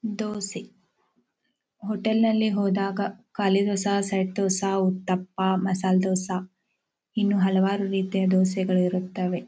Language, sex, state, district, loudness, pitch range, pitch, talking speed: Kannada, female, Karnataka, Dharwad, -25 LUFS, 185-200 Hz, 195 Hz, 110 wpm